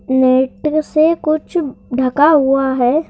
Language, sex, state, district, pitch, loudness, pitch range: Hindi, male, Madhya Pradesh, Bhopal, 290 Hz, -15 LUFS, 260-310 Hz